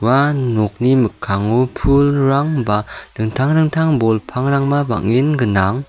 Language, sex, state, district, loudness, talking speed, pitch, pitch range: Garo, male, Meghalaya, South Garo Hills, -16 LUFS, 110 wpm, 130 Hz, 110-140 Hz